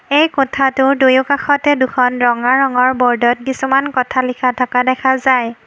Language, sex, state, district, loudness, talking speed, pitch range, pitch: Assamese, female, Assam, Kamrup Metropolitan, -14 LUFS, 135 wpm, 250-270 Hz, 260 Hz